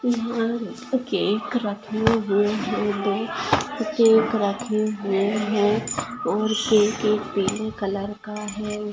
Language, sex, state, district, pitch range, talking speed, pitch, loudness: Hindi, female, Maharashtra, Chandrapur, 205-225 Hz, 105 wpm, 210 Hz, -23 LUFS